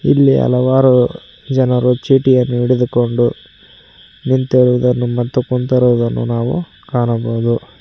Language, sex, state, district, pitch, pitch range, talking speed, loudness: Kannada, male, Karnataka, Koppal, 125 Hz, 120-130 Hz, 75 wpm, -14 LUFS